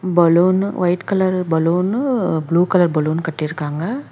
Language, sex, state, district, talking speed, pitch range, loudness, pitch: Tamil, female, Karnataka, Bangalore, 115 wpm, 165-185 Hz, -17 LUFS, 175 Hz